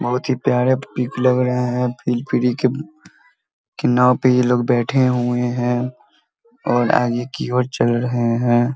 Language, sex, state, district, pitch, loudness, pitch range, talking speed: Hindi, male, Bihar, Muzaffarpur, 125 Hz, -18 LUFS, 120-130 Hz, 155 wpm